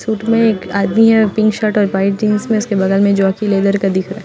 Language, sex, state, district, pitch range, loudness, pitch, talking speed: Hindi, female, Bihar, Muzaffarpur, 195-215 Hz, -14 LUFS, 205 Hz, 280 wpm